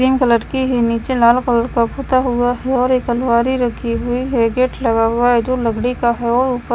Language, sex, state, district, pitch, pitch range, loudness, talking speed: Hindi, female, Himachal Pradesh, Shimla, 245 Hz, 235-255 Hz, -16 LUFS, 240 wpm